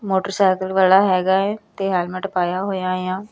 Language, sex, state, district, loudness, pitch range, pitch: Punjabi, female, Punjab, Kapurthala, -19 LUFS, 185-195 Hz, 190 Hz